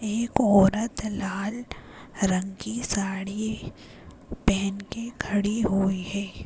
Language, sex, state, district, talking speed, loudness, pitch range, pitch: Hindi, female, Uttar Pradesh, Gorakhpur, 100 wpm, -26 LUFS, 195-220 Hz, 205 Hz